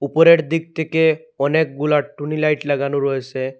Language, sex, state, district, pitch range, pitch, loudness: Bengali, male, Assam, Hailakandi, 140-160 Hz, 150 Hz, -18 LUFS